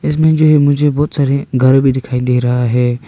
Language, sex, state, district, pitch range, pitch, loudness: Hindi, male, Arunachal Pradesh, Longding, 125-145 Hz, 135 Hz, -12 LUFS